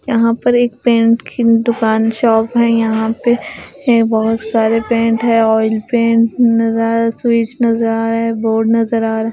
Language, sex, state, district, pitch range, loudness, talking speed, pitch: Hindi, female, Bihar, West Champaran, 225-235 Hz, -14 LUFS, 185 wpm, 230 Hz